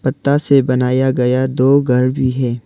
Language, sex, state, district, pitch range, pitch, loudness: Hindi, male, Arunachal Pradesh, Longding, 125-135 Hz, 130 Hz, -14 LUFS